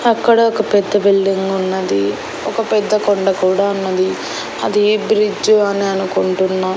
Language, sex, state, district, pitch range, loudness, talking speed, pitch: Telugu, female, Andhra Pradesh, Annamaya, 190-210 Hz, -15 LUFS, 125 wpm, 200 Hz